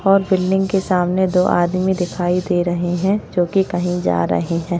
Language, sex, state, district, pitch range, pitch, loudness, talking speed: Hindi, female, Maharashtra, Chandrapur, 175-190 Hz, 180 Hz, -18 LUFS, 200 wpm